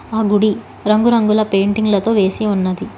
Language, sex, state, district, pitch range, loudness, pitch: Telugu, female, Telangana, Hyderabad, 200-215 Hz, -15 LUFS, 210 Hz